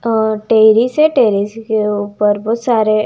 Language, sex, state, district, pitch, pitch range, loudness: Hindi, female, Himachal Pradesh, Shimla, 220 Hz, 210-230 Hz, -13 LUFS